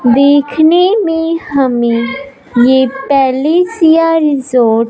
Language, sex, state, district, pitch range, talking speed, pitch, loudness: Hindi, female, Punjab, Fazilka, 255-325 Hz, 100 wpm, 275 Hz, -11 LUFS